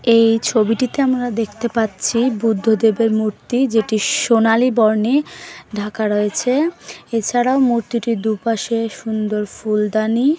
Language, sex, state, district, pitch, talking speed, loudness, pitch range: Bengali, female, West Bengal, Jhargram, 225 Hz, 100 wpm, -17 LUFS, 215-245 Hz